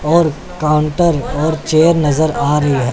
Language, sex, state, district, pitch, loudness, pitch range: Hindi, male, Chandigarh, Chandigarh, 155 Hz, -14 LUFS, 145-160 Hz